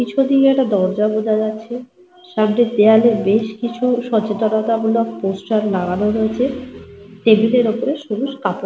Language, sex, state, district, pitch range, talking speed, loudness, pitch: Bengali, female, Jharkhand, Sahebganj, 215-245 Hz, 130 wpm, -17 LUFS, 220 Hz